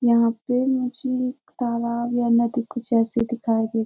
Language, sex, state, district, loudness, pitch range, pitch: Hindi, female, Uttarakhand, Uttarkashi, -23 LUFS, 235-250 Hz, 235 Hz